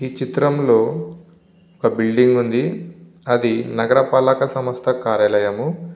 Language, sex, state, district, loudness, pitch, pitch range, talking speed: Telugu, male, Andhra Pradesh, Visakhapatnam, -18 LUFS, 130 Hz, 120-165 Hz, 110 wpm